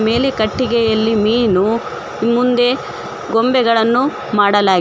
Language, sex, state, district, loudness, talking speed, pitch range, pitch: Kannada, female, Karnataka, Koppal, -15 LUFS, 75 wpm, 215-245 Hz, 230 Hz